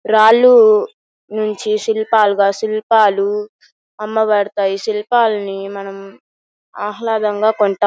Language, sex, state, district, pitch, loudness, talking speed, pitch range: Telugu, female, Andhra Pradesh, Guntur, 215 Hz, -15 LUFS, 70 wpm, 205-220 Hz